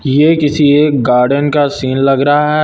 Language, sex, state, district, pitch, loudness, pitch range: Hindi, male, Uttar Pradesh, Lucknow, 145 Hz, -11 LUFS, 135-150 Hz